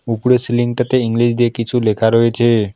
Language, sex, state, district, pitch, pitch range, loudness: Bengali, male, West Bengal, Alipurduar, 120 Hz, 115-120 Hz, -15 LUFS